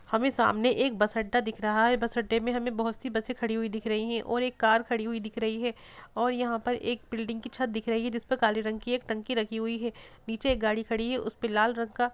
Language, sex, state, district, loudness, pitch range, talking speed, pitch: Hindi, female, Bihar, Gopalganj, -29 LUFS, 225-245 Hz, 280 wpm, 230 Hz